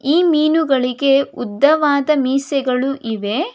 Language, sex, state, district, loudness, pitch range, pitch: Kannada, female, Karnataka, Bangalore, -16 LUFS, 255-305 Hz, 275 Hz